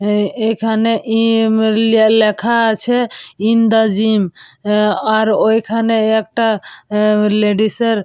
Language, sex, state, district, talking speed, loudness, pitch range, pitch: Bengali, female, West Bengal, Purulia, 110 wpm, -14 LUFS, 210-225 Hz, 220 Hz